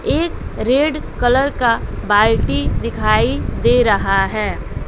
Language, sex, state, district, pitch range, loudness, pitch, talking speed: Hindi, female, Bihar, West Champaran, 210-275 Hz, -16 LUFS, 240 Hz, 110 wpm